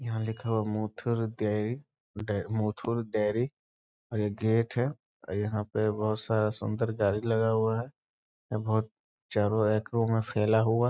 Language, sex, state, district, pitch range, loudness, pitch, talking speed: Hindi, male, Bihar, East Champaran, 105-115 Hz, -30 LUFS, 110 Hz, 165 wpm